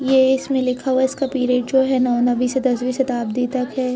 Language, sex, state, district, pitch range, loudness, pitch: Hindi, female, Uttar Pradesh, Etah, 250-265 Hz, -19 LUFS, 255 Hz